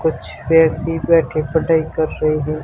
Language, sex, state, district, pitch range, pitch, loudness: Hindi, male, Rajasthan, Barmer, 155-165 Hz, 160 Hz, -17 LUFS